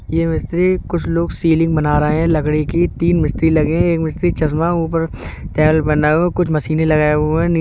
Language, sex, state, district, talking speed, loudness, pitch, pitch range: Hindi, male, Uttar Pradesh, Budaun, 215 wpm, -16 LUFS, 160 Hz, 155-170 Hz